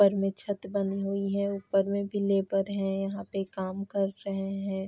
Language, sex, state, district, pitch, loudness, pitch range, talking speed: Hindi, female, Uttar Pradesh, Varanasi, 195 Hz, -30 LUFS, 195-200 Hz, 210 wpm